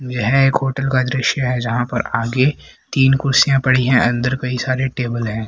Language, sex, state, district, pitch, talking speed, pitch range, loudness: Hindi, female, Haryana, Rohtak, 130 Hz, 195 wpm, 120-135 Hz, -17 LUFS